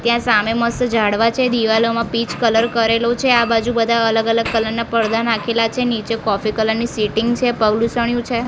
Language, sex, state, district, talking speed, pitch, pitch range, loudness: Gujarati, female, Gujarat, Gandhinagar, 200 wpm, 230 Hz, 225-235 Hz, -17 LUFS